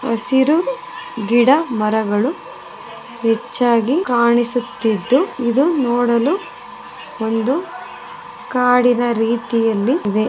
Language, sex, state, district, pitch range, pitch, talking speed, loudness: Kannada, female, Karnataka, Mysore, 230-325 Hz, 245 Hz, 60 wpm, -17 LUFS